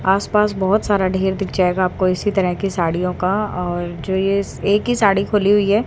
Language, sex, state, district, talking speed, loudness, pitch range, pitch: Hindi, female, Haryana, Rohtak, 225 wpm, -18 LUFS, 185-205 Hz, 195 Hz